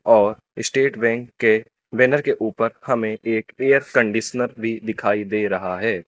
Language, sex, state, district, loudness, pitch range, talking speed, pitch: Hindi, male, Uttar Pradesh, Lucknow, -20 LUFS, 110-120 Hz, 160 wpm, 115 Hz